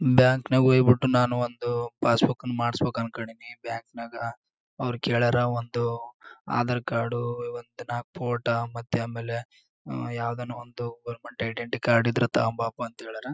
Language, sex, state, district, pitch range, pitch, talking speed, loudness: Kannada, male, Karnataka, Bellary, 115-120 Hz, 120 Hz, 125 wpm, -27 LUFS